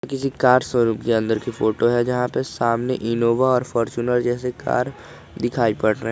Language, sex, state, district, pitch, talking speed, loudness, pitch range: Hindi, male, Jharkhand, Garhwa, 120 Hz, 195 wpm, -21 LUFS, 115-125 Hz